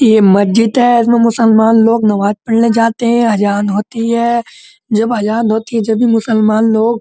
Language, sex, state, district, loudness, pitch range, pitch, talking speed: Hindi, male, Uttar Pradesh, Muzaffarnagar, -11 LUFS, 220-235 Hz, 225 Hz, 190 wpm